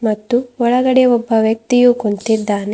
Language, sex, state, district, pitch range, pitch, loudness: Kannada, female, Karnataka, Bidar, 220-245 Hz, 230 Hz, -14 LUFS